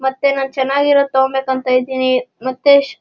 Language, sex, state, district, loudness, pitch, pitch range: Kannada, male, Karnataka, Shimoga, -15 LUFS, 265 Hz, 260-280 Hz